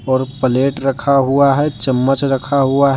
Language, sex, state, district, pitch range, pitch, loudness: Hindi, male, Jharkhand, Deoghar, 130-140 Hz, 135 Hz, -15 LUFS